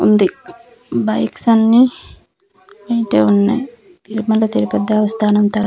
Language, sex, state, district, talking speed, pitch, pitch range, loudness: Telugu, female, Andhra Pradesh, Manyam, 95 wpm, 220 Hz, 205-240 Hz, -15 LUFS